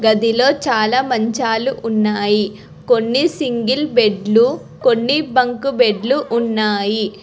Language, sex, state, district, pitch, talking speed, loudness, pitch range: Telugu, female, Telangana, Hyderabad, 235 Hz, 90 wpm, -16 LUFS, 215-265 Hz